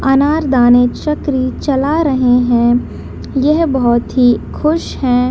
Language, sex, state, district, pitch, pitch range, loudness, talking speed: Hindi, female, Bihar, Madhepura, 260 Hz, 245-295 Hz, -13 LUFS, 145 wpm